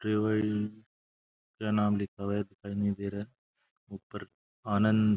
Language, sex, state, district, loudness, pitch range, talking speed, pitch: Rajasthani, male, Rajasthan, Churu, -31 LUFS, 100-105 Hz, 150 wpm, 105 Hz